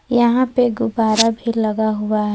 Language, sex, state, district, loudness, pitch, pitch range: Hindi, female, Jharkhand, Palamu, -17 LUFS, 225 Hz, 215-240 Hz